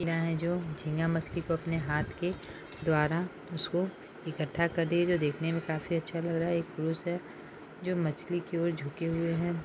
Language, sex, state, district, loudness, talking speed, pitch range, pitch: Hindi, female, Bihar, Saharsa, -32 LUFS, 200 wpm, 160-175 Hz, 165 Hz